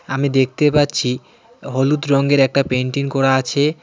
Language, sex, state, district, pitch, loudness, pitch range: Bengali, male, West Bengal, Cooch Behar, 140 Hz, -17 LUFS, 130-145 Hz